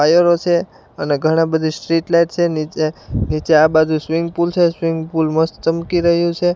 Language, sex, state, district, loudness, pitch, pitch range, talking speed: Gujarati, male, Gujarat, Gandhinagar, -16 LUFS, 165 Hz, 155-170 Hz, 185 wpm